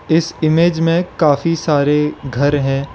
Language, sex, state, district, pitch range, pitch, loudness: Hindi, male, Arunachal Pradesh, Lower Dibang Valley, 145-165 Hz, 155 Hz, -15 LUFS